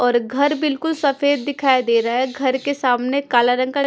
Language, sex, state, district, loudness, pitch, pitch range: Hindi, female, Punjab, Kapurthala, -18 LUFS, 265 Hz, 250-285 Hz